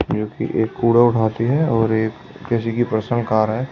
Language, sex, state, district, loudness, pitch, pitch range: Hindi, male, Delhi, New Delhi, -19 LUFS, 115 Hz, 110-120 Hz